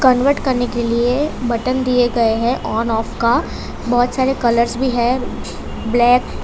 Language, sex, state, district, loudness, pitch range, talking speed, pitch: Hindi, female, Gujarat, Valsad, -17 LUFS, 235-255 Hz, 160 wpm, 245 Hz